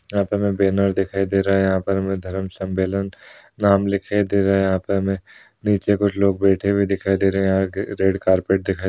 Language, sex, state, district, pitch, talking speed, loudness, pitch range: Hindi, male, Uttar Pradesh, Hamirpur, 95 Hz, 235 wpm, -20 LUFS, 95-100 Hz